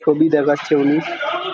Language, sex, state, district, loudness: Bengali, male, West Bengal, Kolkata, -17 LUFS